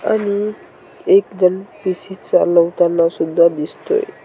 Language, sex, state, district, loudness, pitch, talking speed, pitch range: Marathi, female, Maharashtra, Washim, -16 LUFS, 190 Hz, 100 wpm, 170-215 Hz